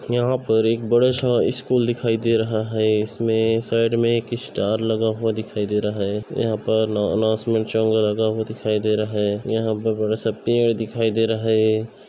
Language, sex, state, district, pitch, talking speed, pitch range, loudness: Hindi, male, Jharkhand, Sahebganj, 110 Hz, 205 wpm, 110-115 Hz, -21 LUFS